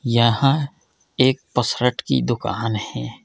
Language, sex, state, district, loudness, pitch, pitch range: Hindi, male, Uttar Pradesh, Jalaun, -20 LUFS, 120 Hz, 105-130 Hz